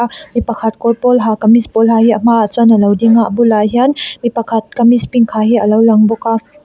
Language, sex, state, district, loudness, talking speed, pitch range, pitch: Mizo, female, Mizoram, Aizawl, -11 LUFS, 225 wpm, 225-240 Hz, 230 Hz